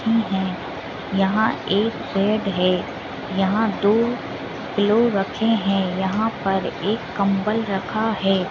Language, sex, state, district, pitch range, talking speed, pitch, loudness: Hindi, female, Uttar Pradesh, Etah, 195-220 Hz, 120 wpm, 200 Hz, -22 LUFS